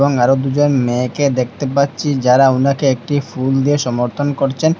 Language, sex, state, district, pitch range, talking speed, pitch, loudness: Bengali, male, Assam, Hailakandi, 130-145 Hz, 150 wpm, 135 Hz, -15 LUFS